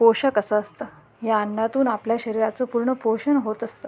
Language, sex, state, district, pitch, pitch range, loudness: Marathi, female, Maharashtra, Sindhudurg, 225 Hz, 220-255 Hz, -23 LUFS